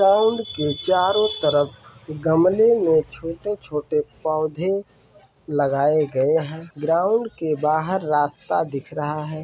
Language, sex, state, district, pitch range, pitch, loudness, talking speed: Hindi, male, Uttar Pradesh, Varanasi, 150-180 Hz, 155 Hz, -21 LUFS, 115 wpm